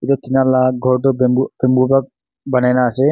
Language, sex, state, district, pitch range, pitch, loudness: Nagamese, male, Nagaland, Kohima, 125-135 Hz, 130 Hz, -15 LUFS